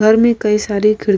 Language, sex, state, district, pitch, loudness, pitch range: Hindi, female, Uttar Pradesh, Hamirpur, 215 Hz, -14 LUFS, 210-220 Hz